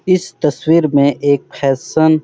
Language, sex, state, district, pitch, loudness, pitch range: Hindi, male, Chhattisgarh, Sarguja, 150 Hz, -14 LUFS, 140-160 Hz